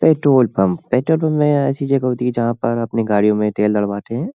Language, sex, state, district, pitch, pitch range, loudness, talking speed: Hindi, male, Uttar Pradesh, Hamirpur, 120 Hz, 105-140 Hz, -17 LUFS, 235 wpm